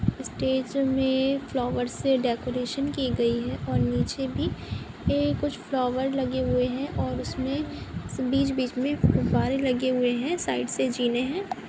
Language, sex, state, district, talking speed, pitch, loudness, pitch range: Hindi, female, Uttar Pradesh, Muzaffarnagar, 150 wpm, 260 Hz, -27 LUFS, 245-270 Hz